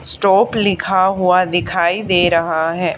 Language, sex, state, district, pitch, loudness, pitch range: Hindi, female, Haryana, Charkhi Dadri, 180 Hz, -15 LUFS, 170-195 Hz